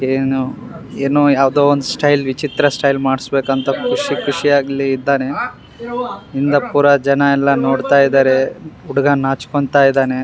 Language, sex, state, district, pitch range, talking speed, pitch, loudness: Kannada, male, Karnataka, Raichur, 135-145 Hz, 125 wpm, 140 Hz, -15 LUFS